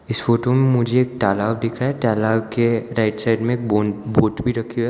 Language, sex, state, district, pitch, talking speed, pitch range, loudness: Hindi, male, Gujarat, Valsad, 115 Hz, 245 wpm, 110-120 Hz, -19 LUFS